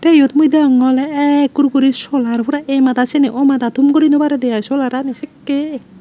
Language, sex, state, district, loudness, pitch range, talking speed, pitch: Chakma, female, Tripura, Unakoti, -14 LUFS, 260-290 Hz, 210 wpm, 275 Hz